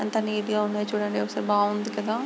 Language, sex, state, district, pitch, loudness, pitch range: Telugu, female, Andhra Pradesh, Chittoor, 210 Hz, -26 LUFS, 210-215 Hz